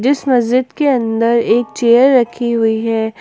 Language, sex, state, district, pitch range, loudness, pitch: Hindi, female, Jharkhand, Ranchi, 230-255 Hz, -13 LUFS, 235 Hz